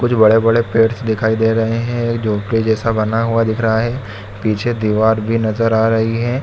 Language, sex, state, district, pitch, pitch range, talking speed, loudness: Hindi, male, Chhattisgarh, Bilaspur, 115 Hz, 110-115 Hz, 205 wpm, -16 LUFS